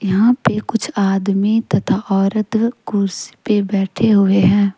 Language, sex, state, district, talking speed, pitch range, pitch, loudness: Hindi, female, Jharkhand, Deoghar, 140 wpm, 195-220 Hz, 205 Hz, -16 LUFS